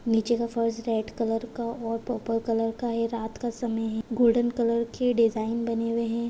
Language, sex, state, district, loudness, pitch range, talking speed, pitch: Hindi, female, Maharashtra, Dhule, -27 LUFS, 225-235 Hz, 210 wpm, 230 Hz